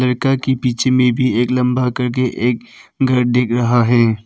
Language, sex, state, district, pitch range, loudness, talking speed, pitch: Hindi, male, Arunachal Pradesh, Papum Pare, 120-130 Hz, -16 LUFS, 170 wpm, 125 Hz